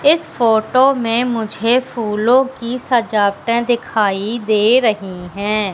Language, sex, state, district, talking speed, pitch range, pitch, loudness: Hindi, female, Madhya Pradesh, Katni, 115 wpm, 210-250 Hz, 230 Hz, -16 LUFS